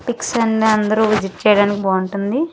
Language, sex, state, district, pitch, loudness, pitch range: Telugu, female, Andhra Pradesh, Annamaya, 215 Hz, -16 LUFS, 200-225 Hz